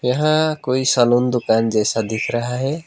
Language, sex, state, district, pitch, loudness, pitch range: Hindi, male, West Bengal, Alipurduar, 125 Hz, -18 LUFS, 115-130 Hz